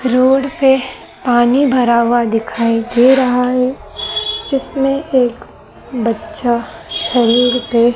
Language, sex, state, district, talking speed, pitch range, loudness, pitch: Hindi, female, Madhya Pradesh, Dhar, 105 wpm, 235-265 Hz, -14 LUFS, 250 Hz